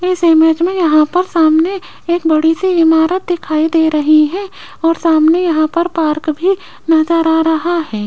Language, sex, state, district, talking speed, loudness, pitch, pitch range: Hindi, female, Rajasthan, Jaipur, 180 wpm, -13 LUFS, 330 Hz, 315-350 Hz